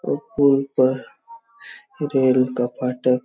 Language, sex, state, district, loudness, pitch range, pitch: Hindi, male, Chhattisgarh, Raigarh, -20 LUFS, 130-160 Hz, 135 Hz